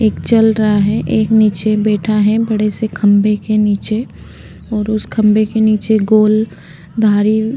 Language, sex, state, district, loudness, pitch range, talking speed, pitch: Hindi, female, Uttarakhand, Tehri Garhwal, -13 LUFS, 210-220 Hz, 165 wpm, 215 Hz